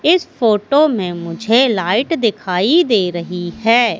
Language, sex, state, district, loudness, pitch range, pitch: Hindi, female, Madhya Pradesh, Katni, -15 LUFS, 180-260 Hz, 225 Hz